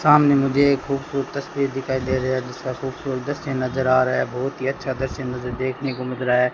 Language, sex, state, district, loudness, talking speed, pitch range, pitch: Hindi, male, Rajasthan, Bikaner, -22 LUFS, 240 wpm, 130-140 Hz, 130 Hz